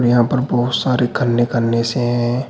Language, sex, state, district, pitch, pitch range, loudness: Hindi, male, Uttar Pradesh, Shamli, 120 Hz, 120-125 Hz, -17 LUFS